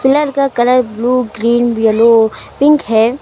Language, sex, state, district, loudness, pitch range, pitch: Hindi, female, Uttar Pradesh, Lucknow, -12 LUFS, 225-270 Hz, 240 Hz